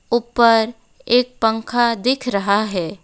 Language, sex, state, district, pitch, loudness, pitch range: Hindi, female, West Bengal, Alipurduar, 230 Hz, -18 LUFS, 215-240 Hz